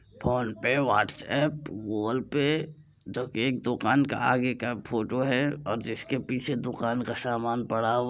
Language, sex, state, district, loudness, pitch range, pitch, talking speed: Maithili, male, Bihar, Supaul, -28 LUFS, 115-130 Hz, 125 Hz, 165 wpm